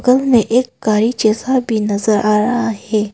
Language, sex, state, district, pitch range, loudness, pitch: Hindi, female, Arunachal Pradesh, Papum Pare, 215-245 Hz, -15 LUFS, 220 Hz